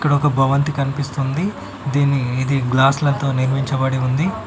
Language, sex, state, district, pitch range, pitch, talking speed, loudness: Telugu, male, Telangana, Mahabubabad, 130-145 Hz, 135 Hz, 120 wpm, -18 LUFS